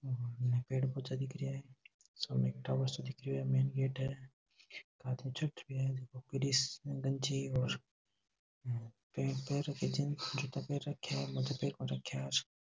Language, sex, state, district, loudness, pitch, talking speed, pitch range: Rajasthani, male, Rajasthan, Nagaur, -38 LUFS, 130 Hz, 75 wpm, 110-135 Hz